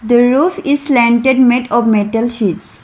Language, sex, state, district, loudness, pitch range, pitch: English, female, Arunachal Pradesh, Lower Dibang Valley, -12 LUFS, 225-260 Hz, 240 Hz